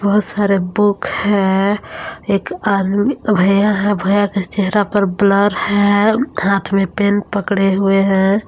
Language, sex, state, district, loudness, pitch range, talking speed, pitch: Hindi, female, Jharkhand, Palamu, -15 LUFS, 195-205 Hz, 150 wpm, 200 Hz